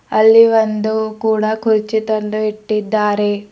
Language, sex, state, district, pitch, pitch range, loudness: Kannada, female, Karnataka, Bidar, 215 Hz, 215-220 Hz, -15 LUFS